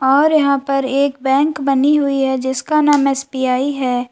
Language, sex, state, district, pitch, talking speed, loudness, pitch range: Hindi, female, Uttar Pradesh, Lalitpur, 275 Hz, 175 wpm, -16 LUFS, 265-285 Hz